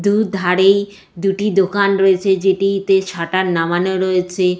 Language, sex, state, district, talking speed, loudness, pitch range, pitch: Bengali, female, West Bengal, Jalpaiguri, 115 wpm, -16 LUFS, 185-195 Hz, 190 Hz